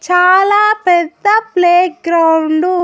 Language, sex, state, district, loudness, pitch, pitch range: Telugu, female, Andhra Pradesh, Annamaya, -11 LUFS, 360 Hz, 340-390 Hz